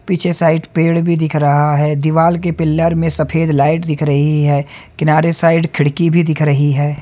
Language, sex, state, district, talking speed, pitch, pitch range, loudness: Hindi, male, Haryana, Charkhi Dadri, 195 wpm, 155 Hz, 150-165 Hz, -14 LUFS